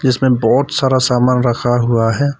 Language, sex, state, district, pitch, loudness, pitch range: Hindi, male, Arunachal Pradesh, Papum Pare, 125 Hz, -14 LUFS, 120-135 Hz